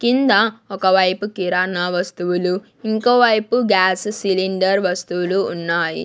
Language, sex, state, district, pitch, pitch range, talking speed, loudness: Telugu, female, Andhra Pradesh, Sri Satya Sai, 190 Hz, 180-215 Hz, 100 wpm, -18 LUFS